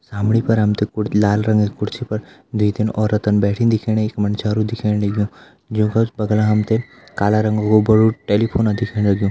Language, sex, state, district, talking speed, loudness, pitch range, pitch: Hindi, male, Uttarakhand, Tehri Garhwal, 200 wpm, -18 LUFS, 105-110 Hz, 105 Hz